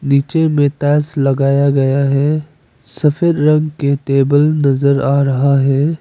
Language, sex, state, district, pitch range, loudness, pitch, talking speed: Hindi, female, Arunachal Pradesh, Papum Pare, 135-150 Hz, -14 LUFS, 140 Hz, 140 wpm